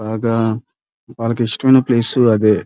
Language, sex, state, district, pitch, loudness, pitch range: Telugu, male, Andhra Pradesh, Krishna, 115 Hz, -15 LUFS, 110-120 Hz